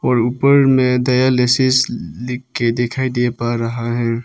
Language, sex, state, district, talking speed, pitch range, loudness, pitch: Hindi, male, Arunachal Pradesh, Papum Pare, 125 wpm, 120-130 Hz, -16 LUFS, 125 Hz